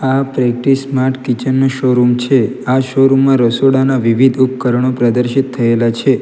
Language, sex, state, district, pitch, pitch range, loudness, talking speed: Gujarati, male, Gujarat, Valsad, 130 Hz, 125-135 Hz, -13 LUFS, 155 wpm